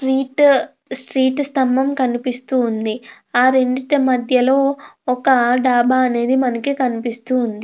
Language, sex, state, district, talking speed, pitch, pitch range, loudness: Telugu, female, Andhra Pradesh, Krishna, 110 wpm, 255 Hz, 245-265 Hz, -17 LUFS